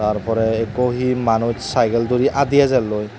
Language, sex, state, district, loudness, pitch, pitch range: Chakma, male, Tripura, Dhalai, -18 LUFS, 115 Hz, 110-125 Hz